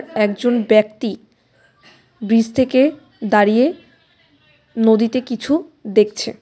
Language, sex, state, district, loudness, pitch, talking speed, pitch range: Bengali, female, West Bengal, Cooch Behar, -17 LUFS, 225 Hz, 75 wpm, 210-255 Hz